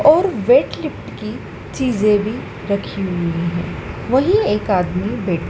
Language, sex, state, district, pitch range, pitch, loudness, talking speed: Hindi, female, Madhya Pradesh, Dhar, 175-260 Hz, 205 Hz, -19 LUFS, 130 wpm